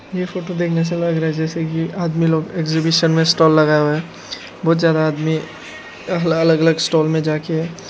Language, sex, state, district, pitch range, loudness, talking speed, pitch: Hindi, male, Arunachal Pradesh, Lower Dibang Valley, 160-170 Hz, -17 LUFS, 195 wpm, 165 Hz